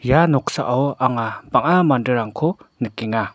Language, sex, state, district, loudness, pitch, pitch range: Garo, male, Meghalaya, North Garo Hills, -19 LUFS, 130 Hz, 115-150 Hz